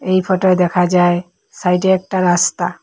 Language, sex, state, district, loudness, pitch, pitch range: Bengali, female, Assam, Hailakandi, -15 LUFS, 180 Hz, 175-185 Hz